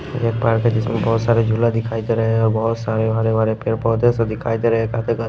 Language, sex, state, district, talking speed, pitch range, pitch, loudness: Hindi, male, Bihar, Patna, 260 wpm, 110-115 Hz, 115 Hz, -18 LUFS